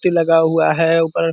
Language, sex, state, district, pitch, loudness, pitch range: Hindi, male, Bihar, Purnia, 165 Hz, -15 LUFS, 160-165 Hz